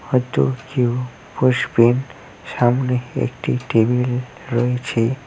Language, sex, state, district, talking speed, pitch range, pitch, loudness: Bengali, male, West Bengal, Cooch Behar, 80 wpm, 120-130 Hz, 125 Hz, -19 LUFS